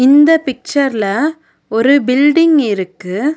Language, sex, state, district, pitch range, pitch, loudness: Tamil, female, Tamil Nadu, Nilgiris, 230-305 Hz, 280 Hz, -13 LUFS